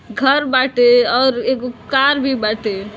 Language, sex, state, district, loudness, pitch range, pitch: Bhojpuri, female, Uttar Pradesh, Deoria, -15 LUFS, 235-270 Hz, 250 Hz